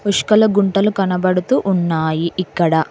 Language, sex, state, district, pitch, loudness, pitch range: Telugu, female, Telangana, Mahabubabad, 185 Hz, -16 LUFS, 170-205 Hz